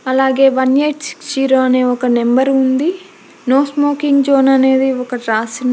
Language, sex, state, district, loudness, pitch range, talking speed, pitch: Telugu, female, Telangana, Hyderabad, -14 LUFS, 255-280 Hz, 155 wpm, 265 Hz